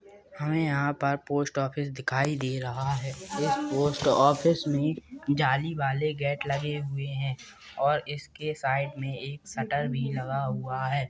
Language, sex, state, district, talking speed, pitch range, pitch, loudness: Hindi, male, Maharashtra, Chandrapur, 155 wpm, 135-145 Hz, 140 Hz, -29 LUFS